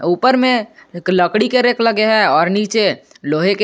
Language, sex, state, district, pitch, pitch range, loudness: Hindi, male, Jharkhand, Garhwa, 215 Hz, 180-235 Hz, -15 LUFS